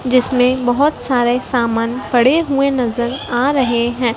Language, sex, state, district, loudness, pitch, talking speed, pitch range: Hindi, female, Madhya Pradesh, Dhar, -15 LUFS, 250 Hz, 160 wpm, 240-265 Hz